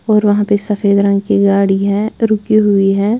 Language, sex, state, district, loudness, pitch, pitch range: Hindi, female, Bihar, West Champaran, -13 LUFS, 205 Hz, 200-215 Hz